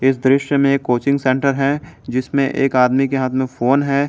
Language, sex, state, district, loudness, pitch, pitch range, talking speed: Hindi, male, Jharkhand, Garhwa, -17 LUFS, 135 Hz, 130-140 Hz, 220 wpm